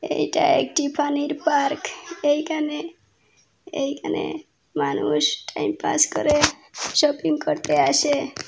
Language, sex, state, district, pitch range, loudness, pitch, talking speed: Bengali, female, Assam, Hailakandi, 285-315 Hz, -22 LUFS, 295 Hz, 90 wpm